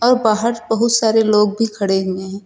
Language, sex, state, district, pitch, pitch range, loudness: Hindi, male, Uttar Pradesh, Lucknow, 220 Hz, 200-230 Hz, -16 LUFS